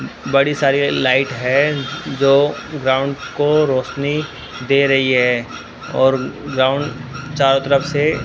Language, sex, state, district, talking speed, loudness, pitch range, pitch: Hindi, male, Rajasthan, Bikaner, 125 wpm, -17 LUFS, 130-140 Hz, 140 Hz